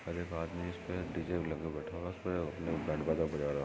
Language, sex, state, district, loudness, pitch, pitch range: Hindi, male, Maharashtra, Solapur, -38 LUFS, 85 Hz, 80-90 Hz